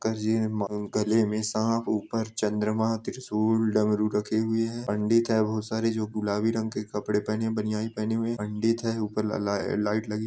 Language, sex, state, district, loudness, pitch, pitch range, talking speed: Hindi, male, Jharkhand, Sahebganj, -27 LUFS, 110 Hz, 105-110 Hz, 165 wpm